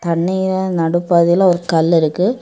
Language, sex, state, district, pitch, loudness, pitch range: Tamil, female, Tamil Nadu, Kanyakumari, 175 Hz, -15 LUFS, 170-190 Hz